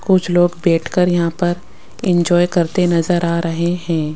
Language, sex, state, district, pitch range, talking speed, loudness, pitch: Hindi, female, Rajasthan, Jaipur, 170-180 Hz, 160 wpm, -16 LUFS, 175 Hz